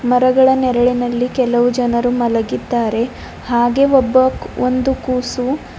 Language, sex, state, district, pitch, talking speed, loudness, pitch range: Kannada, female, Karnataka, Bidar, 250 Hz, 95 wpm, -15 LUFS, 240-255 Hz